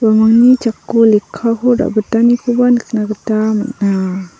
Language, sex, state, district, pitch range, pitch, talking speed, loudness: Garo, female, Meghalaya, South Garo Hills, 215-240 Hz, 225 Hz, 95 wpm, -13 LUFS